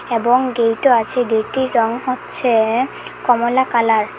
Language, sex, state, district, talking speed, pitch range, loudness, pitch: Bengali, female, Assam, Hailakandi, 130 wpm, 225-255 Hz, -17 LUFS, 240 Hz